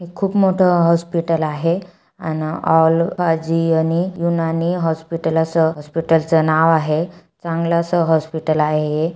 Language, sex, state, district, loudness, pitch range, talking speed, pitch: Marathi, female, Maharashtra, Aurangabad, -17 LUFS, 160-170 Hz, 105 wpm, 165 Hz